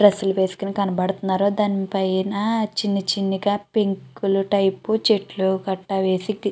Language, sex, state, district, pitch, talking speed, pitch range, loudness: Telugu, female, Andhra Pradesh, Chittoor, 195 Hz, 140 wpm, 190-205 Hz, -22 LUFS